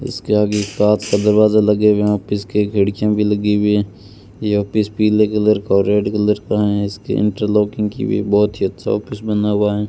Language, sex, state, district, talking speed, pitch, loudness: Hindi, male, Rajasthan, Bikaner, 230 wpm, 105 Hz, -16 LUFS